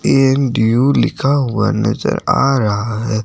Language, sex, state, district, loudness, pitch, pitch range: Hindi, male, Himachal Pradesh, Shimla, -15 LUFS, 125 Hz, 110-140 Hz